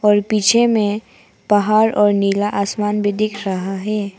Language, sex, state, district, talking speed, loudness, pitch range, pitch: Hindi, female, Arunachal Pradesh, Papum Pare, 160 wpm, -17 LUFS, 200-215 Hz, 205 Hz